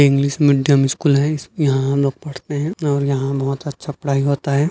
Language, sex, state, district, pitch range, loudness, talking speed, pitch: Hindi, male, Chhattisgarh, Bilaspur, 140-145 Hz, -18 LUFS, 190 wpm, 140 Hz